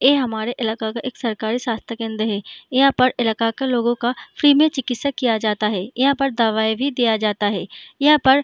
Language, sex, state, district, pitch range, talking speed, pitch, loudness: Hindi, female, Bihar, Jahanabad, 220-265 Hz, 220 wpm, 240 Hz, -19 LUFS